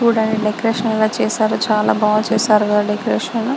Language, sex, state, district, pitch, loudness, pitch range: Telugu, female, Andhra Pradesh, Guntur, 220 Hz, -16 LUFS, 215-225 Hz